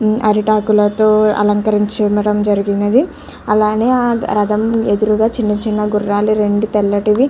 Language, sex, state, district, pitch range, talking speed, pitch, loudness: Telugu, female, Andhra Pradesh, Chittoor, 210-215 Hz, 105 wpm, 210 Hz, -14 LUFS